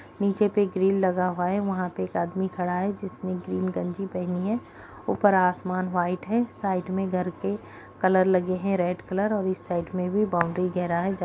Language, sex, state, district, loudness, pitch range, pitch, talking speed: Hindi, female, Bihar, Madhepura, -26 LUFS, 180-195 Hz, 185 Hz, 200 wpm